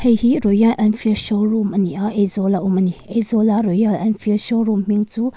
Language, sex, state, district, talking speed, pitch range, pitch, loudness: Mizo, female, Mizoram, Aizawl, 165 wpm, 205-225 Hz, 215 Hz, -16 LUFS